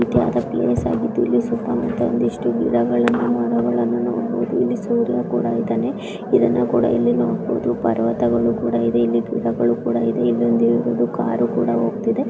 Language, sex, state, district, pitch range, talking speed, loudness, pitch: Kannada, female, Karnataka, Gulbarga, 115-120 Hz, 150 wpm, -19 LUFS, 120 Hz